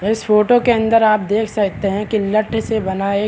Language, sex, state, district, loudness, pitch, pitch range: Hindi, male, Bihar, Supaul, -16 LUFS, 215 Hz, 205-220 Hz